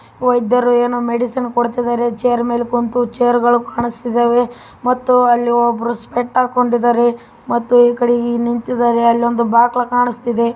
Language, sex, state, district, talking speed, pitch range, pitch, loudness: Kannada, female, Karnataka, Raichur, 140 wpm, 235-245 Hz, 240 Hz, -15 LUFS